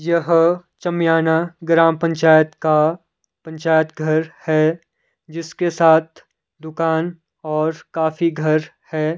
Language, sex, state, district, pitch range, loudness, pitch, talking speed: Hindi, male, Himachal Pradesh, Shimla, 155-165 Hz, -18 LUFS, 160 Hz, 100 wpm